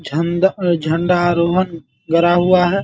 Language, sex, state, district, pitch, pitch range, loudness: Hindi, male, Bihar, Muzaffarpur, 175 Hz, 165-180 Hz, -16 LUFS